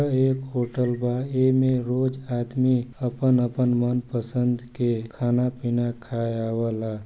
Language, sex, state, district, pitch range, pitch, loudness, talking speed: Hindi, male, Chhattisgarh, Balrampur, 120-130 Hz, 125 Hz, -24 LUFS, 135 wpm